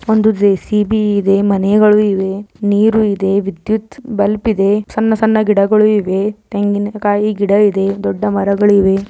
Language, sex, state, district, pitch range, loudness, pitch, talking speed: Kannada, female, Karnataka, Belgaum, 200-215 Hz, -13 LUFS, 205 Hz, 125 wpm